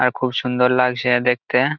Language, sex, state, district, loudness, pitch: Bengali, male, West Bengal, Jalpaiguri, -18 LUFS, 125 Hz